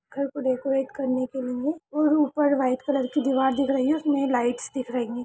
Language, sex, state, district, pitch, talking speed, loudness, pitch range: Hindi, male, Bihar, Darbhanga, 270 Hz, 230 wpm, -25 LUFS, 255-285 Hz